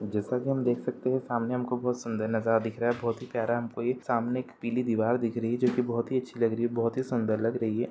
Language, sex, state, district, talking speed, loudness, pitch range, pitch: Bhojpuri, male, Bihar, Saran, 290 wpm, -29 LUFS, 115-125 Hz, 120 Hz